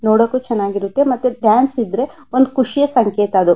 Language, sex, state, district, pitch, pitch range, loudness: Kannada, female, Karnataka, Mysore, 240 Hz, 205-260 Hz, -16 LUFS